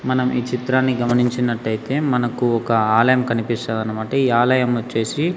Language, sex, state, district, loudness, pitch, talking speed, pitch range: Telugu, male, Andhra Pradesh, Sri Satya Sai, -19 LUFS, 120 Hz, 135 wpm, 115-130 Hz